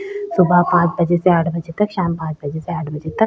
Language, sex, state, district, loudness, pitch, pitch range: Hindi, female, Chhattisgarh, Korba, -18 LUFS, 175 Hz, 160-180 Hz